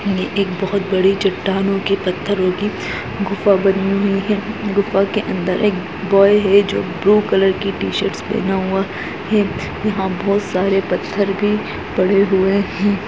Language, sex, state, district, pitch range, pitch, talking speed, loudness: Hindi, female, Uttarakhand, Tehri Garhwal, 190-200 Hz, 195 Hz, 155 wpm, -17 LUFS